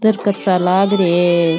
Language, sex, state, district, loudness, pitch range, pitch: Rajasthani, male, Rajasthan, Churu, -15 LUFS, 175-205 Hz, 185 Hz